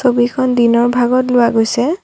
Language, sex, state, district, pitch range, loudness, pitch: Assamese, female, Assam, Kamrup Metropolitan, 235-255 Hz, -13 LUFS, 245 Hz